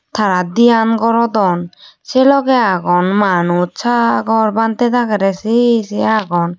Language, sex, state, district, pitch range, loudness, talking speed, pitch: Chakma, female, Tripura, Unakoti, 180-235 Hz, -13 LUFS, 120 wpm, 220 Hz